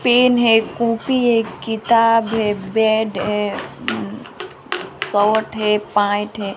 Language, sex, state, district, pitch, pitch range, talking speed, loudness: Hindi, female, Bihar, West Champaran, 220 Hz, 210-230 Hz, 110 wpm, -18 LUFS